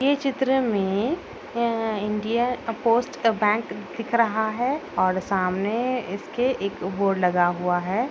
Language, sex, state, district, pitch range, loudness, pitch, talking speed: Hindi, female, Bihar, Darbhanga, 195-240 Hz, -24 LUFS, 225 Hz, 135 wpm